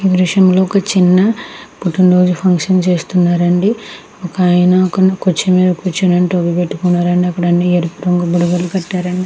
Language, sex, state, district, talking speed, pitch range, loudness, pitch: Telugu, female, Andhra Pradesh, Krishna, 150 wpm, 175-185 Hz, -13 LUFS, 180 Hz